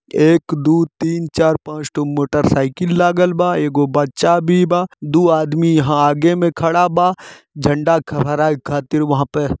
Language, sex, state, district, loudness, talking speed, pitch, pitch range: Bhojpuri, male, Jharkhand, Sahebganj, -16 LUFS, 160 wpm, 155 Hz, 145-170 Hz